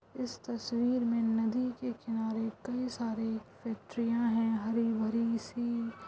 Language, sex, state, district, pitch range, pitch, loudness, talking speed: Hindi, female, Goa, North and South Goa, 225-240 Hz, 230 Hz, -33 LUFS, 130 wpm